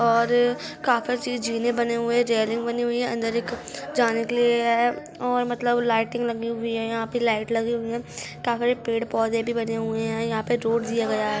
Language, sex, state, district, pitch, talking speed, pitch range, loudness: Hindi, female, Jharkhand, Jamtara, 235 Hz, 220 wpm, 230-240 Hz, -24 LUFS